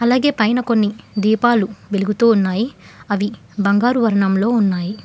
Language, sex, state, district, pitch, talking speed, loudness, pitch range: Telugu, female, Telangana, Hyderabad, 215 Hz, 120 wpm, -17 LUFS, 200-235 Hz